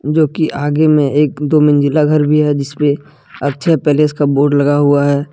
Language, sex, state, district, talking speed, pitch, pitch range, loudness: Hindi, male, Jharkhand, Ranchi, 200 wpm, 145 Hz, 145-150 Hz, -13 LUFS